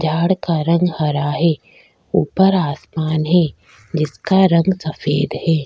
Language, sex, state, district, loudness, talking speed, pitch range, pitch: Hindi, female, Chhattisgarh, Bastar, -17 LUFS, 125 wpm, 150-175 Hz, 160 Hz